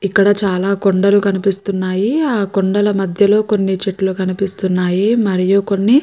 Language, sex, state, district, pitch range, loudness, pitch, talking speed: Telugu, female, Andhra Pradesh, Chittoor, 190-205 Hz, -15 LUFS, 195 Hz, 130 wpm